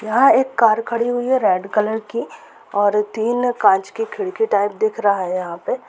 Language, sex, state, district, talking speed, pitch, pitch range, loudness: Hindi, female, Jharkhand, Jamtara, 205 wpm, 220 Hz, 205-245 Hz, -18 LUFS